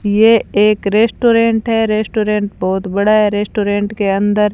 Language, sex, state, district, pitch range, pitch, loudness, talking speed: Hindi, female, Rajasthan, Bikaner, 205-220 Hz, 210 Hz, -14 LUFS, 145 wpm